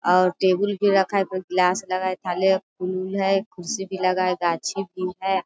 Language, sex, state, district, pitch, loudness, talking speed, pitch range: Hindi, female, Bihar, Sitamarhi, 185 Hz, -23 LUFS, 220 wpm, 185-195 Hz